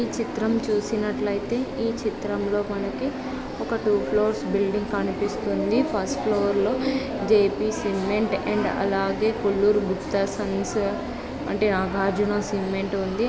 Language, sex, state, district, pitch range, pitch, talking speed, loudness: Telugu, female, Andhra Pradesh, Visakhapatnam, 200-215 Hz, 205 Hz, 105 wpm, -24 LUFS